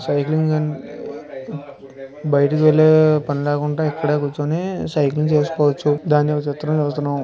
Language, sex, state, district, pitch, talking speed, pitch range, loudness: Telugu, male, Andhra Pradesh, Visakhapatnam, 150 Hz, 65 wpm, 145-155 Hz, -18 LUFS